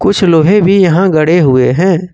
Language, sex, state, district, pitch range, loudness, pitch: Hindi, male, Jharkhand, Ranchi, 160-190 Hz, -9 LUFS, 180 Hz